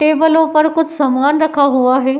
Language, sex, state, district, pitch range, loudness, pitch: Hindi, female, Uttar Pradesh, Etah, 270-315 Hz, -13 LUFS, 300 Hz